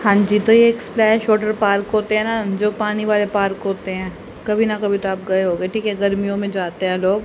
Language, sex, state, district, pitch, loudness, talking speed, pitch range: Hindi, female, Haryana, Rohtak, 205 Hz, -18 LUFS, 255 wpm, 195-215 Hz